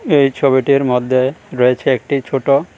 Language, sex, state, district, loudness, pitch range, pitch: Bengali, male, Tripura, West Tripura, -15 LUFS, 130-140 Hz, 135 Hz